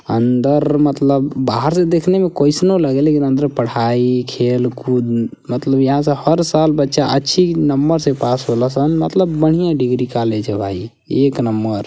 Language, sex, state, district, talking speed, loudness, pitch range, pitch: Bhojpuri, male, Uttar Pradesh, Gorakhpur, 170 wpm, -15 LUFS, 125-150 Hz, 135 Hz